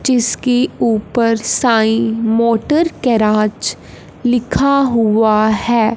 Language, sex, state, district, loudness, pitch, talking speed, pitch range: Hindi, female, Punjab, Fazilka, -14 LUFS, 230 Hz, 80 wpm, 220-245 Hz